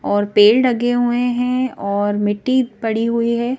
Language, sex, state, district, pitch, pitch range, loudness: Hindi, female, Madhya Pradesh, Bhopal, 235 Hz, 205-245 Hz, -17 LUFS